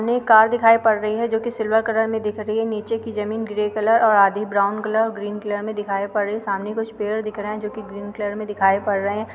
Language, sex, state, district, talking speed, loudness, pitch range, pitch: Hindi, female, Uttar Pradesh, Varanasi, 280 wpm, -20 LUFS, 205-225 Hz, 215 Hz